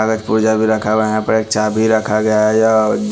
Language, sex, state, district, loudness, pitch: Hindi, male, Haryana, Charkhi Dadri, -14 LUFS, 110 Hz